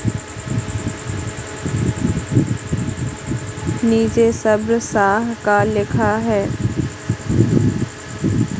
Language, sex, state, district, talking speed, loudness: Hindi, female, Madhya Pradesh, Katni, 40 wpm, -19 LUFS